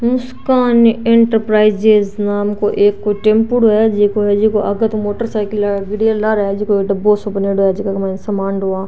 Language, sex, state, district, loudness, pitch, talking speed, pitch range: Marwari, female, Rajasthan, Nagaur, -14 LUFS, 210 Hz, 155 wpm, 205-220 Hz